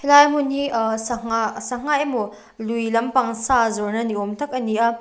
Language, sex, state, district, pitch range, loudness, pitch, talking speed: Mizo, female, Mizoram, Aizawl, 225-260 Hz, -21 LUFS, 230 Hz, 180 wpm